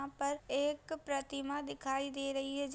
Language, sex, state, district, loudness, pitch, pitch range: Hindi, female, Bihar, Saharsa, -38 LUFS, 280 Hz, 275-285 Hz